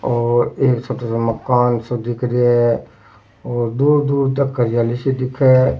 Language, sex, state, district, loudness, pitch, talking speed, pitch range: Rajasthani, male, Rajasthan, Churu, -17 LUFS, 120 Hz, 165 wpm, 120-130 Hz